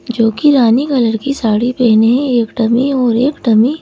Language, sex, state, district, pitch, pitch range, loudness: Hindi, female, Madhya Pradesh, Bhopal, 240 Hz, 225-270 Hz, -12 LUFS